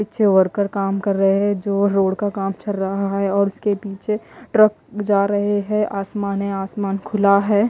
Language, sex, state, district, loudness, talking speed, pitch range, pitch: Hindi, female, Haryana, Jhajjar, -19 LUFS, 195 wpm, 195-205 Hz, 200 Hz